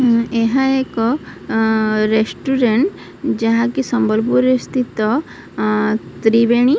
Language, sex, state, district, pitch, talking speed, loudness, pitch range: Odia, female, Odisha, Sambalpur, 235 Hz, 90 wpm, -17 LUFS, 220-255 Hz